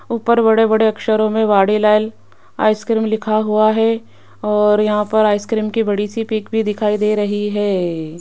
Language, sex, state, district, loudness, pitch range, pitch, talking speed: Hindi, female, Rajasthan, Jaipur, -16 LUFS, 210-220 Hz, 215 Hz, 160 wpm